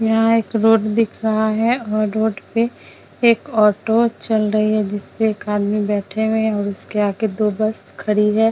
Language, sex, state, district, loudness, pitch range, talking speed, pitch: Hindi, female, Bihar, Vaishali, -18 LUFS, 210-225 Hz, 190 wpm, 220 Hz